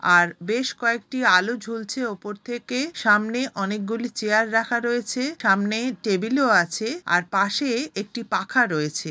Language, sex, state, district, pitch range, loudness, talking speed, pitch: Bengali, female, West Bengal, Jalpaiguri, 200-240 Hz, -23 LUFS, 145 wpm, 225 Hz